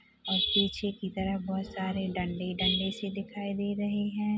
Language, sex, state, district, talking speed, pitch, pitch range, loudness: Hindi, female, Chhattisgarh, Rajnandgaon, 165 wpm, 195 Hz, 190-205 Hz, -31 LUFS